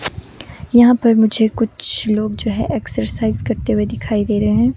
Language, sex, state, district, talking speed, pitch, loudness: Hindi, female, Himachal Pradesh, Shimla, 175 wpm, 215 Hz, -16 LUFS